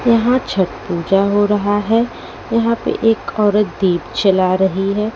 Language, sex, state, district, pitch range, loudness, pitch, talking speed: Hindi, female, Haryana, Rohtak, 190-230 Hz, -16 LUFS, 205 Hz, 165 wpm